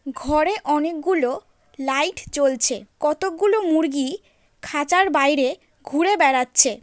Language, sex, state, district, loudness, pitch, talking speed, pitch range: Bengali, female, West Bengal, Paschim Medinipur, -20 LUFS, 300 Hz, 90 wpm, 275-360 Hz